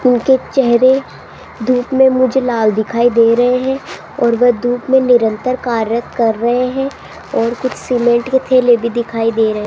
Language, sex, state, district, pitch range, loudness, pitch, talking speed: Hindi, female, Rajasthan, Jaipur, 230-255 Hz, -14 LUFS, 245 Hz, 180 wpm